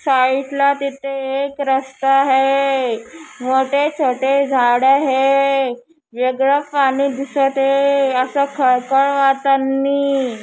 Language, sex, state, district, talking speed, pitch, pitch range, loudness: Marathi, female, Maharashtra, Chandrapur, 90 wpm, 270 Hz, 265-280 Hz, -16 LUFS